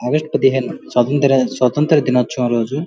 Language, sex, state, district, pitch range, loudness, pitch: Telugu, male, Andhra Pradesh, Guntur, 125-145 Hz, -16 LUFS, 130 Hz